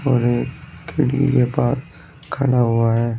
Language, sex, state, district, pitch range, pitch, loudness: Hindi, male, Uttar Pradesh, Saharanpur, 120-140 Hz, 125 Hz, -19 LUFS